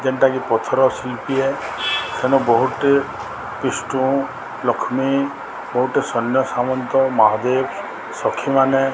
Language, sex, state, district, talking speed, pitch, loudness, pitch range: Odia, male, Odisha, Sambalpur, 95 wpm, 135 Hz, -19 LUFS, 130-135 Hz